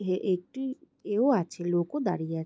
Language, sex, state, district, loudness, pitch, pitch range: Bengali, female, West Bengal, Jalpaiguri, -29 LUFS, 185 Hz, 175-265 Hz